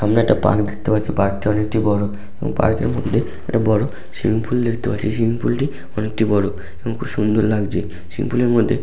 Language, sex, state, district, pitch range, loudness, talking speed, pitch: Bengali, male, West Bengal, Paschim Medinipur, 100-115 Hz, -20 LUFS, 215 wpm, 110 Hz